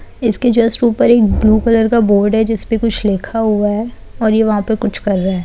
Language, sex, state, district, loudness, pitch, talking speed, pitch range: Hindi, female, Bihar, Saran, -14 LUFS, 220 Hz, 245 wpm, 210-230 Hz